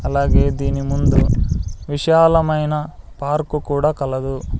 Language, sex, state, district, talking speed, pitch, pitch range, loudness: Telugu, male, Andhra Pradesh, Sri Satya Sai, 90 wpm, 140 Hz, 115-150 Hz, -18 LUFS